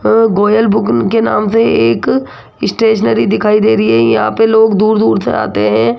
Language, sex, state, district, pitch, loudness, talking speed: Hindi, female, Rajasthan, Jaipur, 210 Hz, -11 LUFS, 170 wpm